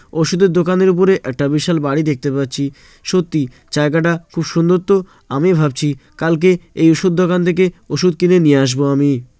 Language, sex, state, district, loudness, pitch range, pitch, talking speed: Bengali, male, West Bengal, Jalpaiguri, -15 LUFS, 145-180 Hz, 165 Hz, 160 wpm